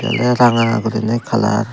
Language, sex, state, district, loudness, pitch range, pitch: Chakma, male, Tripura, Dhalai, -15 LUFS, 110-120 Hz, 115 Hz